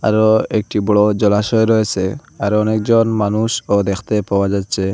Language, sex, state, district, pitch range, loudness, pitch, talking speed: Bengali, male, Assam, Hailakandi, 100-110 Hz, -16 LUFS, 105 Hz, 135 wpm